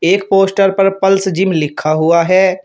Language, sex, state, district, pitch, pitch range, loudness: Hindi, male, Uttar Pradesh, Shamli, 190 Hz, 170-195 Hz, -12 LUFS